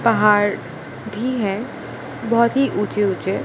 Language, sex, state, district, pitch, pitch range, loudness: Hindi, female, Gujarat, Gandhinagar, 215 Hz, 205-235 Hz, -19 LUFS